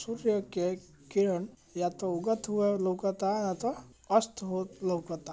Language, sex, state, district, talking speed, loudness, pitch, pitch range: Bhojpuri, male, Bihar, Gopalganj, 145 wpm, -31 LUFS, 195 Hz, 180-210 Hz